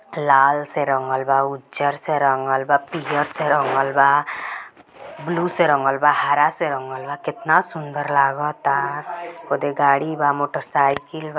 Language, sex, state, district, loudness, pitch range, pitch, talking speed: Bhojpuri, female, Bihar, Gopalganj, -20 LUFS, 140-150 Hz, 145 Hz, 145 wpm